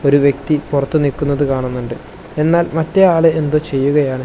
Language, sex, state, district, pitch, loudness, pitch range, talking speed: Malayalam, male, Kerala, Kasaragod, 145 Hz, -15 LUFS, 140-155 Hz, 140 wpm